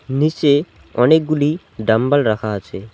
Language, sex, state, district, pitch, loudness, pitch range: Bengali, male, West Bengal, Alipurduar, 140 Hz, -17 LUFS, 110-150 Hz